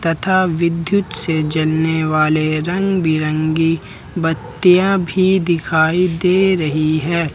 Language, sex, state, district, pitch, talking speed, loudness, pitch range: Hindi, male, Jharkhand, Ranchi, 165 Hz, 105 wpm, -16 LUFS, 155-180 Hz